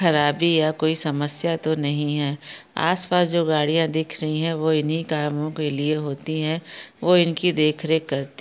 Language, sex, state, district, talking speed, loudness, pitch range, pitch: Hindi, female, Maharashtra, Pune, 170 wpm, -21 LUFS, 150-165 Hz, 155 Hz